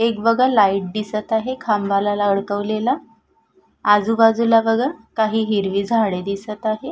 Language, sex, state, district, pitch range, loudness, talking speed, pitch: Marathi, female, Maharashtra, Sindhudurg, 205-230 Hz, -19 LUFS, 120 wpm, 215 Hz